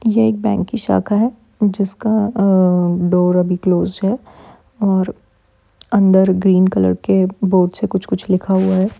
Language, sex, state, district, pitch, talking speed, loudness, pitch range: Hindi, female, Bihar, Supaul, 190 Hz, 155 wpm, -16 LUFS, 180-205 Hz